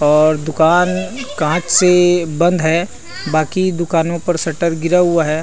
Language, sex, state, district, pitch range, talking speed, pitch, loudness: Chhattisgarhi, male, Chhattisgarh, Rajnandgaon, 160-180 Hz, 155 wpm, 170 Hz, -15 LUFS